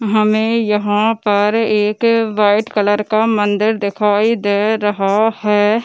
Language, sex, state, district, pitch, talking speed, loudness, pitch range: Hindi, female, Bihar, Gaya, 210 Hz, 125 wpm, -15 LUFS, 205-220 Hz